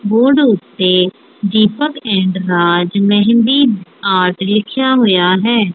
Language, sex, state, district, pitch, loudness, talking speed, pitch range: Punjabi, female, Punjab, Kapurthala, 205 Hz, -13 LUFS, 105 wpm, 185-235 Hz